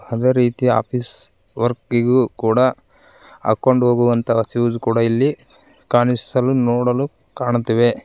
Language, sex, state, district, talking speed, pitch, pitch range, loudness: Kannada, male, Karnataka, Koppal, 105 wpm, 120 Hz, 115-125 Hz, -18 LUFS